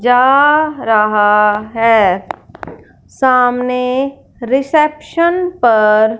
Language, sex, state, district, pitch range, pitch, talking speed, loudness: Hindi, female, Punjab, Fazilka, 220-275 Hz, 250 Hz, 70 wpm, -12 LUFS